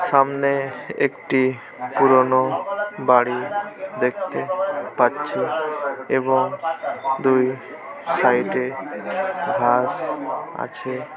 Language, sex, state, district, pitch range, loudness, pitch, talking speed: Bengali, male, West Bengal, Jalpaiguri, 130-155 Hz, -21 LUFS, 135 Hz, 65 wpm